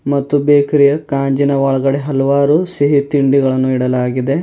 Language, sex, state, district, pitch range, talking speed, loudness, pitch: Kannada, male, Karnataka, Bidar, 135-145 Hz, 110 wpm, -14 LUFS, 140 Hz